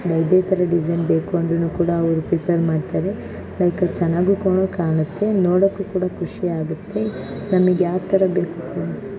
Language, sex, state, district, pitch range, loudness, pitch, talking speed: Kannada, female, Karnataka, Shimoga, 170-190 Hz, -20 LUFS, 180 Hz, 125 wpm